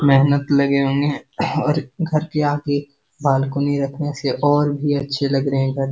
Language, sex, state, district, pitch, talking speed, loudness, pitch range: Hindi, male, Bihar, Jamui, 140 Hz, 170 wpm, -19 LUFS, 140-145 Hz